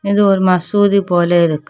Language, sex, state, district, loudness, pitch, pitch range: Tamil, female, Tamil Nadu, Kanyakumari, -13 LUFS, 185 Hz, 175-200 Hz